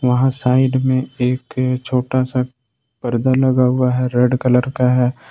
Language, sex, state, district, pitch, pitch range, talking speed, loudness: Hindi, male, Jharkhand, Ranchi, 125 Hz, 125-130 Hz, 160 wpm, -17 LUFS